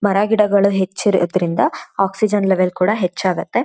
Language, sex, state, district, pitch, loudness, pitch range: Kannada, female, Karnataka, Shimoga, 195 Hz, -17 LUFS, 185-205 Hz